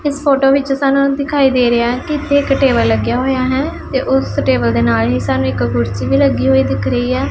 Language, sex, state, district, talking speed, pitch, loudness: Punjabi, female, Punjab, Pathankot, 245 wpm, 240 Hz, -14 LUFS